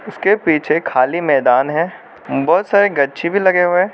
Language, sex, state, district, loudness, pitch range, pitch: Hindi, male, Arunachal Pradesh, Lower Dibang Valley, -15 LUFS, 140-195 Hz, 175 Hz